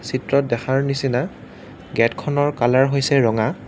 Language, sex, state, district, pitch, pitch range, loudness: Assamese, male, Assam, Kamrup Metropolitan, 130 Hz, 115-140 Hz, -19 LUFS